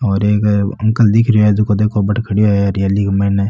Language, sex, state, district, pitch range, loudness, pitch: Marwari, male, Rajasthan, Nagaur, 100-105 Hz, -14 LUFS, 105 Hz